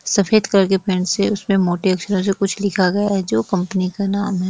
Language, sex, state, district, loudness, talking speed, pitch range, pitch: Hindi, female, Jharkhand, Sahebganj, -18 LUFS, 240 wpm, 185-200 Hz, 195 Hz